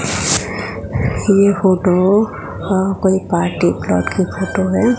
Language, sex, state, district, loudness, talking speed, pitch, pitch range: Hindi, female, Gujarat, Gandhinagar, -16 LUFS, 110 wpm, 190 Hz, 180-200 Hz